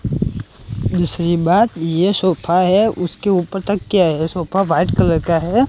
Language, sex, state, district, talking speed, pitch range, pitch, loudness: Hindi, male, Gujarat, Gandhinagar, 145 wpm, 170-195 Hz, 180 Hz, -17 LUFS